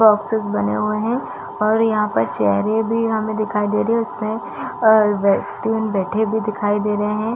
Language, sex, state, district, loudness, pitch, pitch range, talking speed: Hindi, female, Chhattisgarh, Raigarh, -19 LUFS, 215 Hz, 205-220 Hz, 190 wpm